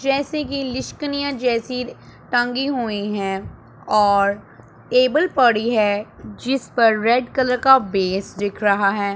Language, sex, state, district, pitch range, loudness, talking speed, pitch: Hindi, male, Punjab, Pathankot, 200-260 Hz, -19 LUFS, 120 wpm, 230 Hz